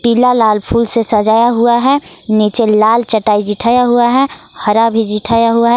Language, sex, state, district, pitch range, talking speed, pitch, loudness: Hindi, female, Jharkhand, Garhwa, 215-240 Hz, 185 wpm, 230 Hz, -12 LUFS